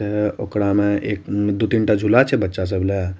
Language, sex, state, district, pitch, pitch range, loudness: Maithili, male, Bihar, Madhepura, 105 Hz, 100-105 Hz, -19 LUFS